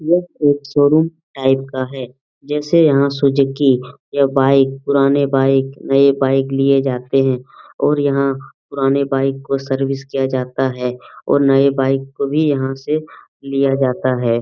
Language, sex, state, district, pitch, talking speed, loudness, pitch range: Hindi, male, Jharkhand, Jamtara, 135 Hz, 155 wpm, -16 LUFS, 135-140 Hz